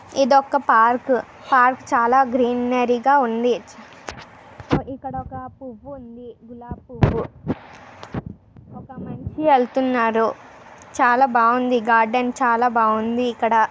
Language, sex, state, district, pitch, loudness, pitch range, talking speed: Telugu, female, Andhra Pradesh, Krishna, 245 Hz, -19 LUFS, 235-265 Hz, 95 wpm